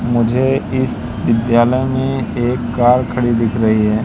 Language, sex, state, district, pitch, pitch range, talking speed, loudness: Hindi, male, Madhya Pradesh, Katni, 120 Hz, 115-130 Hz, 150 wpm, -15 LUFS